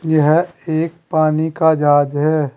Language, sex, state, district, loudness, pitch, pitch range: Hindi, male, Uttar Pradesh, Saharanpur, -16 LUFS, 155 Hz, 150-160 Hz